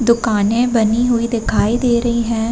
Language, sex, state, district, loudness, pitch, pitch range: Hindi, female, Uttar Pradesh, Varanasi, -16 LUFS, 235 Hz, 225-240 Hz